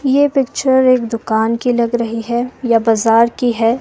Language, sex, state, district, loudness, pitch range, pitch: Hindi, female, Himachal Pradesh, Shimla, -15 LUFS, 230-255 Hz, 235 Hz